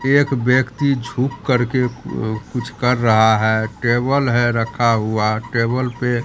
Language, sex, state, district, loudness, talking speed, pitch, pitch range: Hindi, male, Bihar, Katihar, -18 LUFS, 145 wpm, 120 Hz, 115-130 Hz